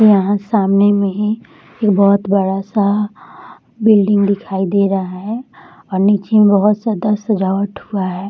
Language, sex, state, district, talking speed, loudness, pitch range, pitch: Hindi, female, Bihar, Jahanabad, 160 wpm, -15 LUFS, 195-210 Hz, 205 Hz